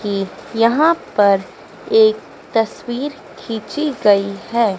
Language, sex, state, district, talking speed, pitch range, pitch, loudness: Hindi, female, Madhya Pradesh, Dhar, 100 wpm, 205-290 Hz, 225 Hz, -17 LUFS